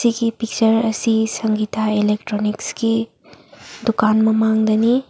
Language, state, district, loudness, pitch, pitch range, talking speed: Manipuri, Manipur, Imphal West, -18 LUFS, 220 Hz, 215-230 Hz, 80 wpm